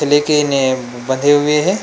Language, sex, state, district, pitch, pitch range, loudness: Chhattisgarhi, male, Chhattisgarh, Rajnandgaon, 145 Hz, 130-145 Hz, -15 LUFS